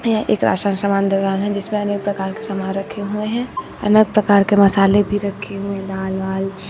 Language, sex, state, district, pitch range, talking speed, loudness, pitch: Hindi, female, Chhattisgarh, Raipur, 195-210 Hz, 205 wpm, -18 LUFS, 200 Hz